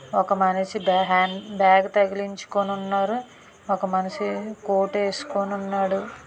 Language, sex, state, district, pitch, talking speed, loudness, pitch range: Telugu, female, Andhra Pradesh, Visakhapatnam, 195 Hz, 95 wpm, -23 LUFS, 190-200 Hz